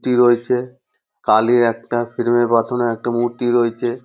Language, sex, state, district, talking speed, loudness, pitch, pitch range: Bengali, male, West Bengal, North 24 Parganas, 120 wpm, -17 LUFS, 120 Hz, 120-125 Hz